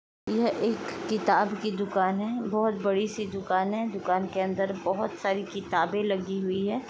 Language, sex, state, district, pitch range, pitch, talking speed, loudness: Hindi, female, Uttar Pradesh, Etah, 190-210 Hz, 200 Hz, 175 wpm, -28 LUFS